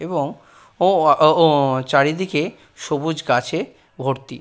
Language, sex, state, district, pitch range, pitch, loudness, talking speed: Bengali, male, West Bengal, Purulia, 135-160 Hz, 150 Hz, -18 LUFS, 120 wpm